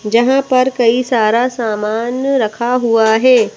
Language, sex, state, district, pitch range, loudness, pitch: Hindi, female, Madhya Pradesh, Bhopal, 225-255 Hz, -13 LUFS, 240 Hz